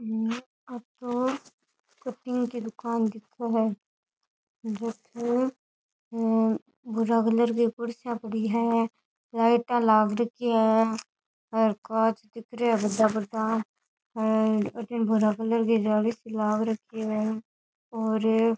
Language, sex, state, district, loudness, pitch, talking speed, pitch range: Rajasthani, female, Rajasthan, Churu, -27 LUFS, 225 Hz, 130 wpm, 220-235 Hz